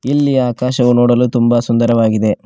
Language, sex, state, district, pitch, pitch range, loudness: Kannada, male, Karnataka, Koppal, 120 Hz, 115-125 Hz, -13 LUFS